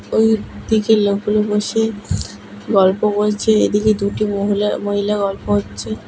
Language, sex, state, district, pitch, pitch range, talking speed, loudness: Bengali, female, West Bengal, Alipurduar, 205 Hz, 190-215 Hz, 110 wpm, -17 LUFS